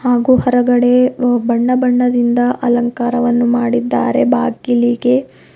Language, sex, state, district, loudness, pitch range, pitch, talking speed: Kannada, female, Karnataka, Bidar, -14 LUFS, 240-250 Hz, 245 Hz, 75 wpm